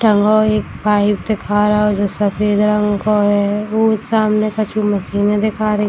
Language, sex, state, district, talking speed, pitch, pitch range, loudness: Hindi, female, Bihar, Darbhanga, 195 wpm, 210 Hz, 205-215 Hz, -15 LUFS